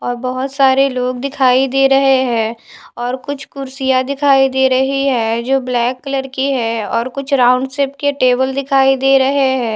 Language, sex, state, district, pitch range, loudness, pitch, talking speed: Hindi, female, Maharashtra, Mumbai Suburban, 250-275 Hz, -15 LUFS, 265 Hz, 190 wpm